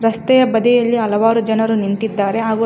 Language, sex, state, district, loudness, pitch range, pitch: Kannada, female, Karnataka, Koppal, -15 LUFS, 220-230 Hz, 225 Hz